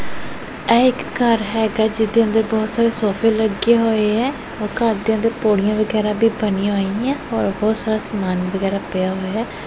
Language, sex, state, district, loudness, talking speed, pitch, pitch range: Punjabi, female, Punjab, Pathankot, -18 LUFS, 175 wpm, 220 Hz, 210-225 Hz